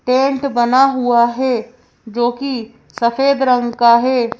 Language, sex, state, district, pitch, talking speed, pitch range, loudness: Hindi, female, Madhya Pradesh, Bhopal, 245 Hz, 120 wpm, 235-260 Hz, -15 LUFS